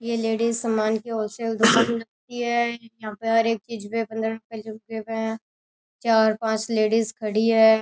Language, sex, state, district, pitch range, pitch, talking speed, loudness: Rajasthani, female, Rajasthan, Churu, 220-230 Hz, 225 Hz, 155 wpm, -23 LUFS